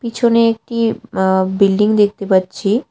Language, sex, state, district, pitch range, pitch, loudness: Bengali, female, West Bengal, Cooch Behar, 190-230 Hz, 205 Hz, -15 LUFS